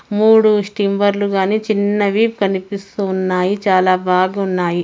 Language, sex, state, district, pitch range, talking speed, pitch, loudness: Telugu, female, Andhra Pradesh, Anantapur, 185-205 Hz, 85 wpm, 200 Hz, -16 LUFS